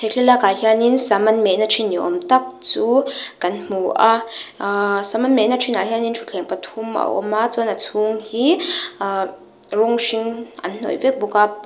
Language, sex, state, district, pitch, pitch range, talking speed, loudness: Mizo, female, Mizoram, Aizawl, 225 Hz, 210-250 Hz, 195 wpm, -18 LUFS